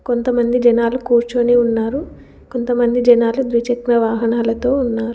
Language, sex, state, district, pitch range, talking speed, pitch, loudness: Telugu, female, Telangana, Komaram Bheem, 235-245 Hz, 105 wpm, 240 Hz, -16 LUFS